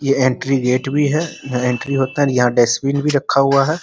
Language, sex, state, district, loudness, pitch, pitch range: Hindi, male, Bihar, Muzaffarpur, -17 LUFS, 135 Hz, 125-140 Hz